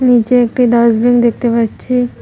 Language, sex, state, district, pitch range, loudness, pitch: Bengali, female, West Bengal, Cooch Behar, 235-245 Hz, -12 LUFS, 240 Hz